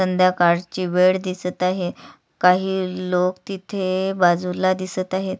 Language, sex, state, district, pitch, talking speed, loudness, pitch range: Marathi, female, Maharashtra, Sindhudurg, 185 Hz, 110 wpm, -20 LUFS, 180-185 Hz